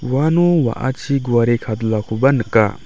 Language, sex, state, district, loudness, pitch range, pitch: Garo, male, Meghalaya, West Garo Hills, -17 LUFS, 110-140 Hz, 120 Hz